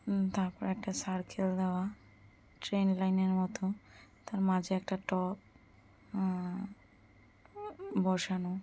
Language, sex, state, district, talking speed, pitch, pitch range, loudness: Bengali, female, West Bengal, Purulia, 105 wpm, 190 Hz, 185-195 Hz, -35 LUFS